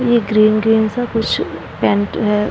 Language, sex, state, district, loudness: Hindi, female, Bihar, Vaishali, -16 LUFS